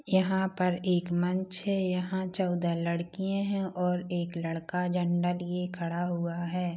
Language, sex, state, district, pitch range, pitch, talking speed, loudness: Hindi, female, Chhattisgarh, Rajnandgaon, 175-185 Hz, 180 Hz, 150 wpm, -30 LUFS